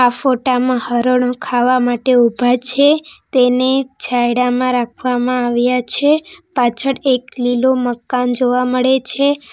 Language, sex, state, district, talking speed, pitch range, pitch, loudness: Gujarati, female, Gujarat, Valsad, 120 wpm, 245-260 Hz, 250 Hz, -15 LUFS